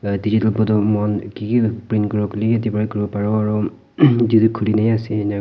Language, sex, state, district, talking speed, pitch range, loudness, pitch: Nagamese, male, Nagaland, Kohima, 190 wpm, 105-110 Hz, -18 LUFS, 105 Hz